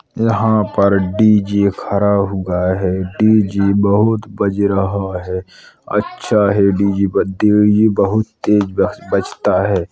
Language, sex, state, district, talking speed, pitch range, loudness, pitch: Hindi, male, Uttar Pradesh, Hamirpur, 125 wpm, 95-105 Hz, -15 LUFS, 100 Hz